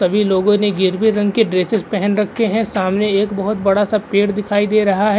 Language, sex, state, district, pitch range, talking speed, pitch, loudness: Hindi, male, Uttar Pradesh, Jalaun, 195-210 Hz, 230 wpm, 205 Hz, -16 LUFS